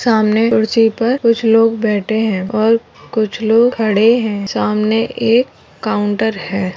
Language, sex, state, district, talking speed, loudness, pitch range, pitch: Hindi, female, Rajasthan, Churu, 140 wpm, -14 LUFS, 210-230 Hz, 220 Hz